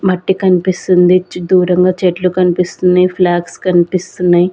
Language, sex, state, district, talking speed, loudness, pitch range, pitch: Telugu, female, Andhra Pradesh, Sri Satya Sai, 95 wpm, -12 LUFS, 180-185 Hz, 180 Hz